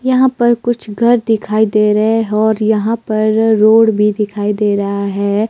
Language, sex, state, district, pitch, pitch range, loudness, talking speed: Hindi, female, Himachal Pradesh, Shimla, 220 Hz, 210-225 Hz, -13 LUFS, 185 wpm